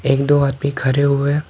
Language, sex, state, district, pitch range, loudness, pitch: Hindi, male, Tripura, Dhalai, 135-140 Hz, -17 LUFS, 140 Hz